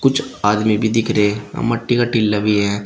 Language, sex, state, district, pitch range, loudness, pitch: Hindi, male, Uttar Pradesh, Shamli, 105-115 Hz, -17 LUFS, 105 Hz